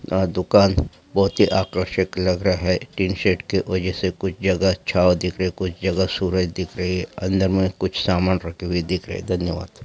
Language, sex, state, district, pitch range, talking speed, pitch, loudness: Hindi, male, West Bengal, Malda, 90-95 Hz, 205 wpm, 95 Hz, -21 LUFS